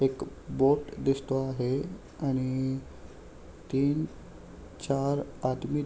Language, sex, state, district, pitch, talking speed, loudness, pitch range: Marathi, male, Maharashtra, Aurangabad, 135 Hz, 80 wpm, -30 LUFS, 85-140 Hz